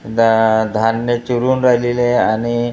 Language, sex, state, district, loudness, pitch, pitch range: Marathi, male, Maharashtra, Gondia, -15 LUFS, 120 Hz, 110-120 Hz